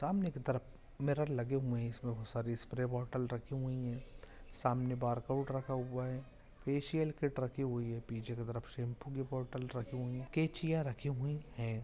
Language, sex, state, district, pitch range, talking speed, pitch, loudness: Hindi, male, Maharashtra, Nagpur, 120-135 Hz, 195 wpm, 130 Hz, -39 LUFS